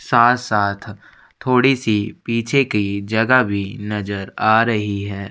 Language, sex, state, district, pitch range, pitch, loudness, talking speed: Hindi, male, Chhattisgarh, Sukma, 100-115 Hz, 105 Hz, -18 LUFS, 125 wpm